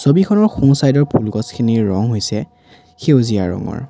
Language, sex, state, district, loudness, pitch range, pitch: Assamese, male, Assam, Sonitpur, -15 LUFS, 105-140 Hz, 115 Hz